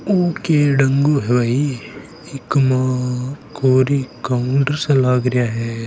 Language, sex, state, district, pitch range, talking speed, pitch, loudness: Hindi, male, Rajasthan, Nagaur, 125-145 Hz, 125 wpm, 135 Hz, -17 LUFS